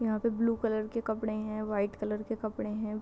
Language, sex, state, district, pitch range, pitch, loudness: Hindi, female, Uttar Pradesh, Hamirpur, 215-225 Hz, 215 Hz, -33 LUFS